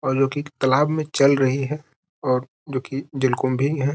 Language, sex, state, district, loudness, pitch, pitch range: Hindi, male, Bihar, Gopalganj, -22 LUFS, 135 Hz, 130-145 Hz